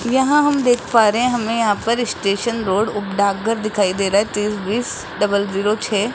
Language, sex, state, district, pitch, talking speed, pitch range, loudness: Hindi, female, Rajasthan, Jaipur, 215 Hz, 215 wpm, 200-235 Hz, -18 LUFS